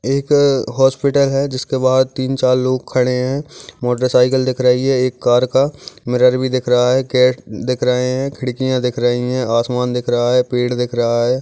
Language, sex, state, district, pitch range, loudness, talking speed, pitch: Hindi, male, Maharashtra, Aurangabad, 125-130 Hz, -16 LUFS, 205 wpm, 125 Hz